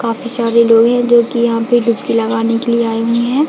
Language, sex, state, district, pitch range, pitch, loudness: Hindi, female, Chhattisgarh, Bilaspur, 230-240 Hz, 235 Hz, -13 LUFS